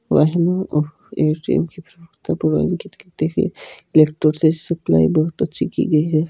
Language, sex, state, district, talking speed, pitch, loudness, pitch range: Hindi, female, Rajasthan, Nagaur, 55 wpm, 160 Hz, -19 LUFS, 155-170 Hz